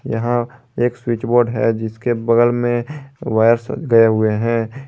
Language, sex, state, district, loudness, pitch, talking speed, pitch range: Hindi, male, Jharkhand, Garhwa, -17 LUFS, 120 Hz, 150 wpm, 115-120 Hz